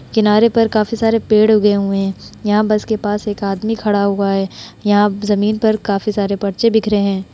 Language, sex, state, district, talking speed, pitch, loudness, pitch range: Hindi, female, Uttar Pradesh, Hamirpur, 195 wpm, 210 Hz, -15 LUFS, 200-220 Hz